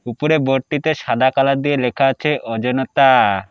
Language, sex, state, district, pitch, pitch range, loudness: Bengali, male, West Bengal, Alipurduar, 135 Hz, 125-145 Hz, -16 LUFS